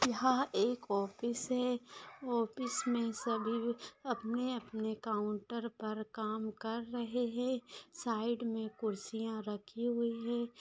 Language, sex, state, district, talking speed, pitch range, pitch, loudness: Hindi, female, Maharashtra, Solapur, 125 wpm, 220-245 Hz, 235 Hz, -37 LUFS